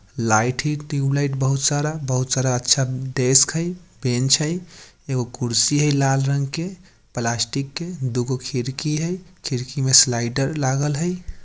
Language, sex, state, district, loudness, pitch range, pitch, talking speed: Bajjika, male, Bihar, Vaishali, -20 LUFS, 125-150 Hz, 135 Hz, 150 wpm